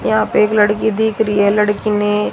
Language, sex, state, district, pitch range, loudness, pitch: Hindi, female, Haryana, Rohtak, 205-215 Hz, -15 LUFS, 210 Hz